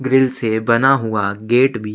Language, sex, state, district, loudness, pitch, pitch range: Hindi, male, Chhattisgarh, Sukma, -16 LUFS, 115 Hz, 110-130 Hz